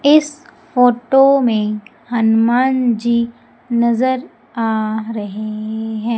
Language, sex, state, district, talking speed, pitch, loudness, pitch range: Hindi, female, Madhya Pradesh, Umaria, 85 wpm, 235 Hz, -16 LUFS, 220-255 Hz